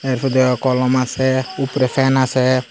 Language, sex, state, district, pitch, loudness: Bengali, male, Tripura, Unakoti, 130 Hz, -17 LUFS